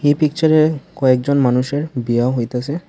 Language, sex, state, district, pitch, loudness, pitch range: Bengali, male, Tripura, Unakoti, 140 Hz, -17 LUFS, 125-155 Hz